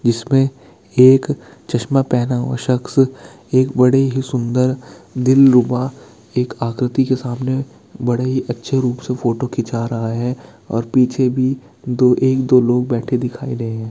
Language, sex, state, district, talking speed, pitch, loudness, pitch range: Hindi, male, Bihar, Kishanganj, 150 wpm, 125 Hz, -17 LUFS, 120-130 Hz